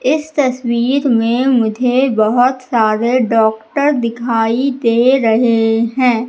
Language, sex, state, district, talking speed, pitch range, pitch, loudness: Hindi, female, Madhya Pradesh, Katni, 105 wpm, 225-255 Hz, 240 Hz, -14 LUFS